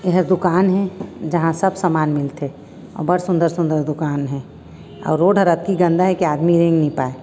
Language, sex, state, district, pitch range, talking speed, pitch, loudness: Chhattisgarhi, female, Chhattisgarh, Raigarh, 150-185 Hz, 190 wpm, 170 Hz, -18 LUFS